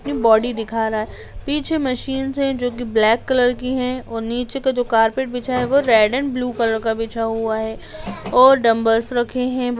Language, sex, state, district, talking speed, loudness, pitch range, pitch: Hindi, female, Bihar, Lakhisarai, 210 wpm, -19 LUFS, 225-260 Hz, 245 Hz